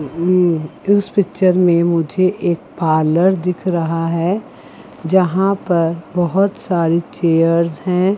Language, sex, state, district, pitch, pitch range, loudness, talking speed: Hindi, female, Chandigarh, Chandigarh, 175 Hz, 165-185 Hz, -16 LUFS, 110 wpm